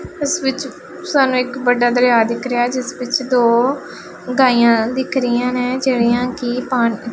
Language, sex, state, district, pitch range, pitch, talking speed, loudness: Punjabi, female, Punjab, Pathankot, 240-260 Hz, 250 Hz, 170 wpm, -16 LUFS